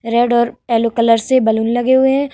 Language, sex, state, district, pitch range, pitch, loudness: Hindi, female, Bihar, Vaishali, 230-260 Hz, 235 Hz, -14 LUFS